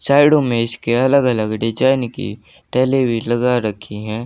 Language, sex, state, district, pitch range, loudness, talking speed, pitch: Hindi, male, Haryana, Jhajjar, 110-130 Hz, -17 LUFS, 170 wpm, 120 Hz